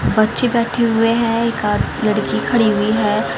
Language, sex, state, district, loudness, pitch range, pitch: Hindi, female, Haryana, Jhajjar, -16 LUFS, 215-235 Hz, 230 Hz